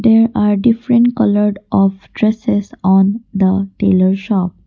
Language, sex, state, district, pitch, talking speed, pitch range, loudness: English, female, Assam, Kamrup Metropolitan, 205 Hz, 130 wpm, 195-225 Hz, -14 LUFS